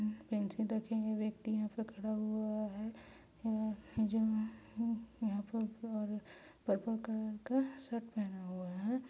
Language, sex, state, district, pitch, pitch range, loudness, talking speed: Hindi, female, Chhattisgarh, Raigarh, 220 Hz, 215-225 Hz, -39 LUFS, 130 wpm